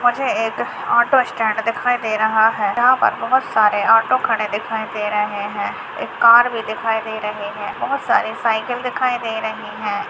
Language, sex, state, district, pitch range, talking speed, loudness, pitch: Hindi, female, Bihar, Purnia, 220-245 Hz, 190 wpm, -18 LUFS, 225 Hz